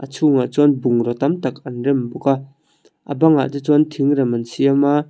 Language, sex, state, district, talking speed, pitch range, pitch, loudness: Mizo, male, Mizoram, Aizawl, 200 wpm, 130-145 Hz, 140 Hz, -17 LUFS